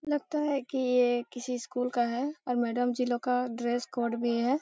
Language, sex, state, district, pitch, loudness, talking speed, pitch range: Hindi, female, Bihar, Lakhisarai, 250 Hz, -30 LUFS, 220 wpm, 240-260 Hz